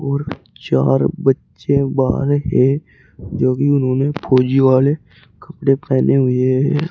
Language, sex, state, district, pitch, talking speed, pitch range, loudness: Hindi, male, Uttar Pradesh, Saharanpur, 135 Hz, 120 wpm, 130-140 Hz, -16 LUFS